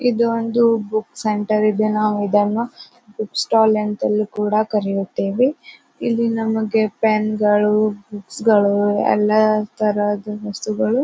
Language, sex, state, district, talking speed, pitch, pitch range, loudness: Kannada, female, Karnataka, Bijapur, 110 wpm, 215 Hz, 210-225 Hz, -18 LUFS